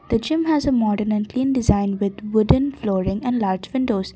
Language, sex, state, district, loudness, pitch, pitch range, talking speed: English, female, Assam, Kamrup Metropolitan, -20 LUFS, 220 Hz, 200-260 Hz, 185 wpm